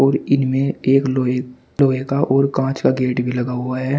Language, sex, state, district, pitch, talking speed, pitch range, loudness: Hindi, male, Uttar Pradesh, Shamli, 130 Hz, 210 wpm, 125-135 Hz, -18 LUFS